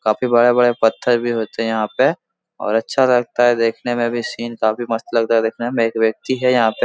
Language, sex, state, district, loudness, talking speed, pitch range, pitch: Hindi, male, Bihar, Araria, -17 LUFS, 235 wpm, 115-120 Hz, 120 Hz